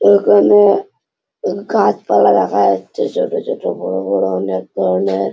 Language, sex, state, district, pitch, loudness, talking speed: Bengali, male, West Bengal, Malda, 100 Hz, -15 LUFS, 115 wpm